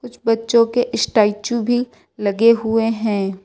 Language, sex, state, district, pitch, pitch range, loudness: Hindi, female, Uttar Pradesh, Lucknow, 225 Hz, 210-240 Hz, -18 LUFS